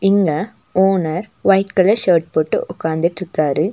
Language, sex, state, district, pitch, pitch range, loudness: Tamil, female, Tamil Nadu, Nilgiris, 185 Hz, 160-195 Hz, -17 LUFS